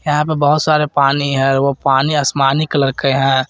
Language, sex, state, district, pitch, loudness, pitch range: Hindi, male, Jharkhand, Garhwa, 140 Hz, -14 LUFS, 135-150 Hz